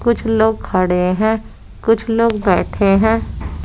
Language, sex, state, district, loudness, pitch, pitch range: Hindi, female, Bihar, West Champaran, -16 LUFS, 220 Hz, 185-225 Hz